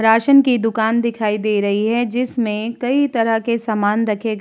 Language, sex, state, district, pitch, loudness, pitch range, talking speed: Hindi, female, Uttar Pradesh, Hamirpur, 225 Hz, -17 LUFS, 215-235 Hz, 205 wpm